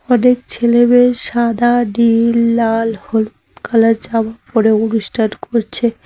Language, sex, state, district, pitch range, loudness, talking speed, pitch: Bengali, female, West Bengal, Cooch Behar, 225-240 Hz, -14 LUFS, 120 wpm, 230 Hz